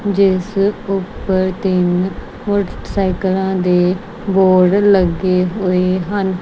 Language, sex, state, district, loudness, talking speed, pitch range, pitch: Punjabi, female, Punjab, Kapurthala, -16 LUFS, 85 wpm, 185-200 Hz, 190 Hz